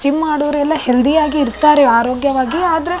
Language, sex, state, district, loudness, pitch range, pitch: Kannada, female, Karnataka, Raichur, -14 LUFS, 270-315 Hz, 295 Hz